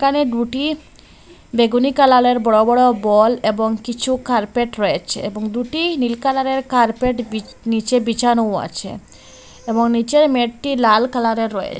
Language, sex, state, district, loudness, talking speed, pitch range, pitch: Bengali, female, Assam, Hailakandi, -17 LUFS, 130 wpm, 220-255 Hz, 240 Hz